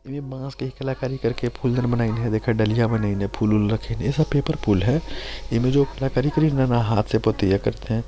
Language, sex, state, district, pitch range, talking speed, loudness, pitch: Chhattisgarhi, male, Chhattisgarh, Sarguja, 110-135 Hz, 235 wpm, -22 LUFS, 120 Hz